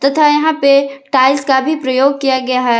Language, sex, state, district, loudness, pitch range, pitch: Hindi, female, Jharkhand, Ranchi, -13 LUFS, 260-280 Hz, 275 Hz